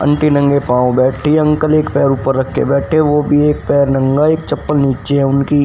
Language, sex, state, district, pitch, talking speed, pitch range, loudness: Hindi, male, Haryana, Rohtak, 145 Hz, 235 wpm, 135-150 Hz, -13 LUFS